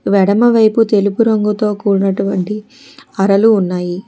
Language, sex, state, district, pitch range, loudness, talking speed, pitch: Telugu, female, Telangana, Hyderabad, 195-225 Hz, -13 LUFS, 105 wpm, 210 Hz